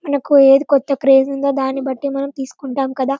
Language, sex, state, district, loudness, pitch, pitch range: Telugu, female, Telangana, Karimnagar, -15 LUFS, 275 Hz, 270-280 Hz